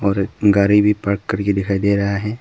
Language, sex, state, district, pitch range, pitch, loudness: Hindi, male, Arunachal Pradesh, Papum Pare, 100-105 Hz, 100 Hz, -17 LUFS